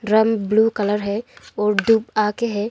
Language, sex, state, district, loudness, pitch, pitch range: Hindi, female, Arunachal Pradesh, Longding, -19 LUFS, 215 Hz, 210-225 Hz